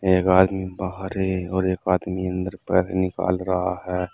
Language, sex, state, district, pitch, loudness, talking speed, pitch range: Hindi, male, Uttar Pradesh, Saharanpur, 95 Hz, -23 LUFS, 175 wpm, 90-95 Hz